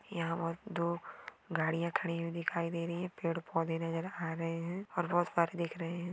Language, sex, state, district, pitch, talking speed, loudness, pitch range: Hindi, female, Maharashtra, Aurangabad, 170 Hz, 215 wpm, -36 LUFS, 165-175 Hz